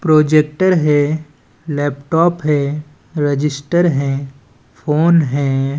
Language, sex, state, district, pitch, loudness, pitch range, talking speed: Chhattisgarhi, male, Chhattisgarh, Balrampur, 150 Hz, -16 LUFS, 140-155 Hz, 85 wpm